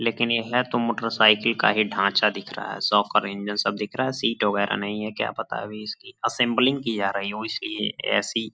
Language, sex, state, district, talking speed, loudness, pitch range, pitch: Hindi, male, Uttar Pradesh, Gorakhpur, 230 wpm, -23 LUFS, 100-115 Hz, 105 Hz